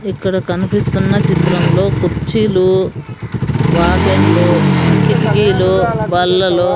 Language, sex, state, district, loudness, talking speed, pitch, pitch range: Telugu, female, Andhra Pradesh, Sri Satya Sai, -13 LUFS, 70 wpm, 180 Hz, 165-185 Hz